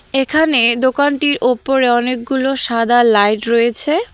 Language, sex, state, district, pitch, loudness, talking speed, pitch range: Bengali, female, West Bengal, Cooch Behar, 255 Hz, -14 LUFS, 100 wpm, 235-280 Hz